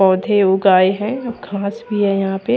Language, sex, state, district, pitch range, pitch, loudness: Hindi, female, Haryana, Rohtak, 195-210 Hz, 200 Hz, -16 LUFS